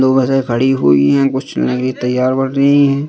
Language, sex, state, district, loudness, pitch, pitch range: Hindi, male, Madhya Pradesh, Katni, -14 LUFS, 130 Hz, 125-135 Hz